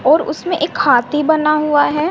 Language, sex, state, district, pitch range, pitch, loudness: Hindi, female, Haryana, Rohtak, 295-310 Hz, 305 Hz, -15 LUFS